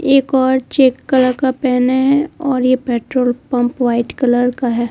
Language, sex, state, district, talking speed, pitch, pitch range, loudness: Hindi, female, Bihar, Kaimur, 185 wpm, 255 Hz, 245-265 Hz, -15 LUFS